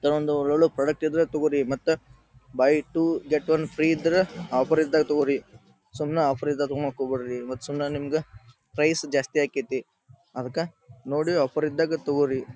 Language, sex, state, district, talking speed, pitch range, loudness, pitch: Kannada, male, Karnataka, Dharwad, 160 wpm, 130-155 Hz, -25 LUFS, 145 Hz